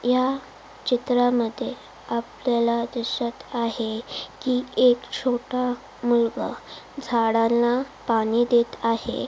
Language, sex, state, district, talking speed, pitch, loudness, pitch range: Marathi, female, Maharashtra, Chandrapur, 85 wpm, 240 Hz, -24 LUFS, 235-250 Hz